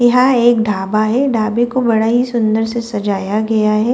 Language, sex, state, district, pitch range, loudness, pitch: Hindi, female, Delhi, New Delhi, 215-240 Hz, -15 LUFS, 225 Hz